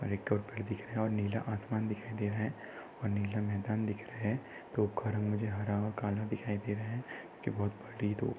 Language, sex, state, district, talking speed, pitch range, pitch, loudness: Hindi, male, Maharashtra, Chandrapur, 150 wpm, 105-110 Hz, 105 Hz, -36 LUFS